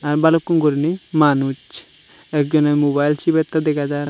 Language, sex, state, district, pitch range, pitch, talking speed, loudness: Chakma, male, Tripura, Unakoti, 145-160 Hz, 150 Hz, 145 wpm, -18 LUFS